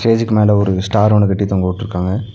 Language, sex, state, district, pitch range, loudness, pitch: Tamil, male, Tamil Nadu, Nilgiris, 95-110 Hz, -15 LUFS, 105 Hz